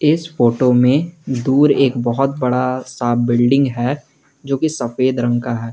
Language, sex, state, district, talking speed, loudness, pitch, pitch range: Hindi, male, Jharkhand, Garhwa, 165 wpm, -16 LUFS, 130 Hz, 120-140 Hz